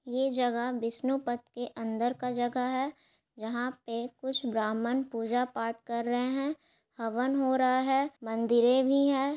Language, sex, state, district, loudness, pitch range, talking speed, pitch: Hindi, female, Bihar, Gaya, -30 LUFS, 235-265 Hz, 160 wpm, 250 Hz